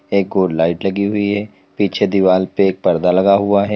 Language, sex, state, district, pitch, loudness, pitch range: Hindi, male, Uttar Pradesh, Lalitpur, 100 Hz, -15 LUFS, 95-100 Hz